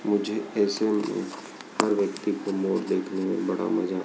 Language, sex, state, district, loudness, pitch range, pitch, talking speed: Hindi, male, Madhya Pradesh, Dhar, -27 LUFS, 100-105 Hz, 105 Hz, 160 wpm